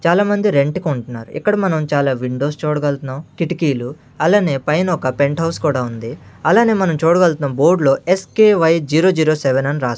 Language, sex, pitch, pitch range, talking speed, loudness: Telugu, male, 150 Hz, 135-175 Hz, 170 wpm, -16 LUFS